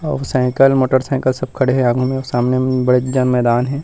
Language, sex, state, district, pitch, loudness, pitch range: Chhattisgarhi, male, Chhattisgarh, Rajnandgaon, 130 Hz, -16 LUFS, 125-135 Hz